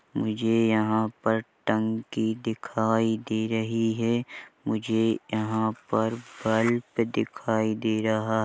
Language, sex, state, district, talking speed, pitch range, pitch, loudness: Hindi, male, Chhattisgarh, Bilaspur, 115 wpm, 110-115 Hz, 110 Hz, -27 LUFS